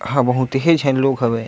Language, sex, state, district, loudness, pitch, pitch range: Chhattisgarhi, male, Chhattisgarh, Sukma, -17 LUFS, 135 Hz, 125-135 Hz